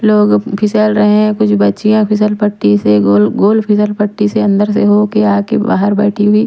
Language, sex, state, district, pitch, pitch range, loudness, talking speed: Hindi, female, Bihar, Patna, 210 Hz, 200-215 Hz, -11 LUFS, 195 wpm